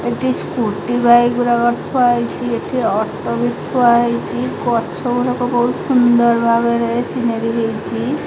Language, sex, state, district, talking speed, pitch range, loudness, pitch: Odia, female, Odisha, Khordha, 130 wpm, 235-245 Hz, -16 LUFS, 240 Hz